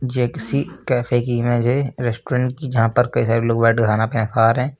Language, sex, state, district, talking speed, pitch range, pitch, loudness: Hindi, male, Uttar Pradesh, Lucknow, 240 wpm, 115-125 Hz, 120 Hz, -19 LUFS